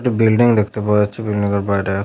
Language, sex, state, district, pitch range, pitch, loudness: Bengali, male, West Bengal, Paschim Medinipur, 100-110 Hz, 105 Hz, -17 LUFS